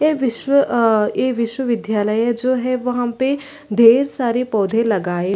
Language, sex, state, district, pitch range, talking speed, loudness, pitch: Hindi, female, Chhattisgarh, Sarguja, 220-255 Hz, 155 wpm, -17 LUFS, 240 Hz